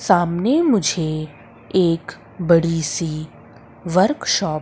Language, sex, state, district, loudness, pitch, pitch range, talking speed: Hindi, female, Madhya Pradesh, Umaria, -19 LUFS, 165 Hz, 150-185 Hz, 90 wpm